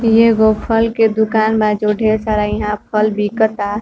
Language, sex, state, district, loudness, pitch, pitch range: Bhojpuri, female, Uttar Pradesh, Varanasi, -15 LUFS, 215 Hz, 210-220 Hz